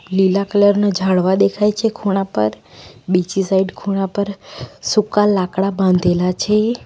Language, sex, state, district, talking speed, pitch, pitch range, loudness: Gujarati, female, Gujarat, Valsad, 140 wpm, 195 Hz, 185-205 Hz, -17 LUFS